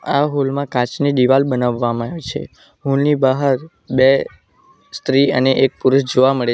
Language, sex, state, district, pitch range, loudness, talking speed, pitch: Gujarati, male, Gujarat, Valsad, 130-140 Hz, -16 LUFS, 175 wpm, 135 Hz